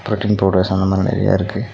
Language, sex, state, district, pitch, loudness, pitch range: Tamil, male, Tamil Nadu, Nilgiris, 95 Hz, -17 LUFS, 95-105 Hz